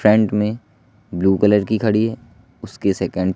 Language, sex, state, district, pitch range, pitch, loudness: Hindi, male, Madhya Pradesh, Katni, 100-110 Hz, 105 Hz, -18 LUFS